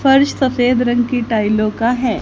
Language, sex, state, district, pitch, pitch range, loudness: Hindi, female, Haryana, Charkhi Dadri, 245 Hz, 230-250 Hz, -15 LUFS